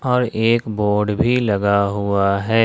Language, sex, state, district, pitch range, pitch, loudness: Hindi, male, Jharkhand, Ranchi, 100-115 Hz, 105 Hz, -18 LUFS